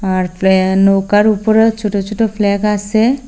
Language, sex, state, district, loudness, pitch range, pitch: Bengali, female, Assam, Hailakandi, -13 LUFS, 195-220 Hz, 205 Hz